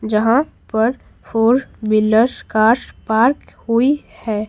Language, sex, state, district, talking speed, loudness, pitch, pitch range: Hindi, female, Bihar, Patna, 105 wpm, -17 LUFS, 225 Hz, 220-245 Hz